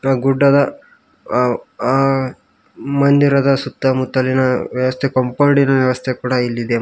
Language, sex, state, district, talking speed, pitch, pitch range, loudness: Kannada, male, Karnataka, Koppal, 105 wpm, 130 Hz, 125-140 Hz, -16 LUFS